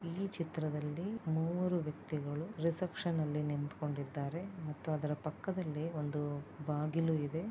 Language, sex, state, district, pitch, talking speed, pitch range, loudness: Kannada, female, Karnataka, Dakshina Kannada, 155 Hz, 110 wpm, 150-170 Hz, -38 LUFS